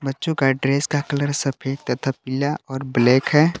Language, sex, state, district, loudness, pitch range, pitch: Hindi, male, Jharkhand, Palamu, -21 LUFS, 135-145 Hz, 135 Hz